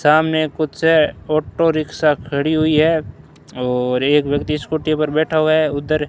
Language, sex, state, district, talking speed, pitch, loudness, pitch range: Hindi, male, Rajasthan, Bikaner, 160 wpm, 155 Hz, -17 LUFS, 145-155 Hz